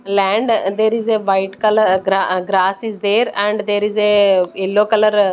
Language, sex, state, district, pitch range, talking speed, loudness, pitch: English, female, Chandigarh, Chandigarh, 195-215 Hz, 235 wpm, -16 LUFS, 205 Hz